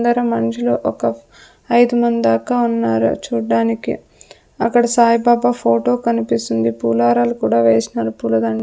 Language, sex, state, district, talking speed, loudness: Telugu, female, Andhra Pradesh, Sri Satya Sai, 120 wpm, -16 LUFS